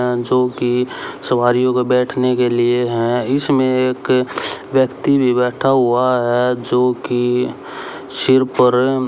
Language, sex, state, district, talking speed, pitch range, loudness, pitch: Hindi, male, Haryana, Rohtak, 130 wpm, 125-130 Hz, -16 LUFS, 125 Hz